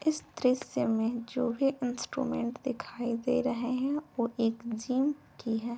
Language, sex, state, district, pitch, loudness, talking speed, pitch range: Hindi, female, Uttar Pradesh, Jyotiba Phule Nagar, 250 Hz, -32 LUFS, 155 wpm, 235-265 Hz